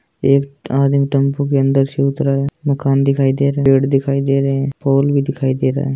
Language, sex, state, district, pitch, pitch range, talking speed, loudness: Hindi, female, Rajasthan, Churu, 140 Hz, 135-140 Hz, 230 wpm, -16 LUFS